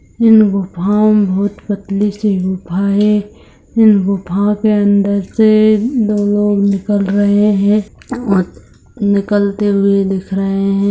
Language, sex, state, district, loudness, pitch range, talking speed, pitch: Hindi, female, Bihar, Saharsa, -13 LUFS, 195-210 Hz, 130 wpm, 205 Hz